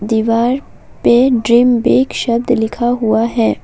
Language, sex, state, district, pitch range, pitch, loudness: Hindi, female, Assam, Kamrup Metropolitan, 225-245 Hz, 235 Hz, -13 LUFS